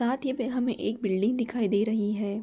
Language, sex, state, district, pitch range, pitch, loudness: Hindi, female, Bihar, Begusarai, 210-245 Hz, 220 Hz, -28 LUFS